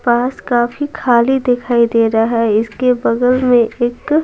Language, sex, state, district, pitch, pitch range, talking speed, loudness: Hindi, female, Bihar, Patna, 240 Hz, 235-250 Hz, 155 wpm, -14 LUFS